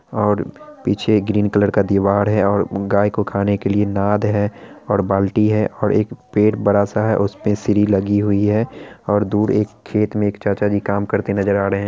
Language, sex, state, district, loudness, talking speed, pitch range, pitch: Hindi, male, Bihar, Araria, -18 LUFS, 205 wpm, 100-105 Hz, 105 Hz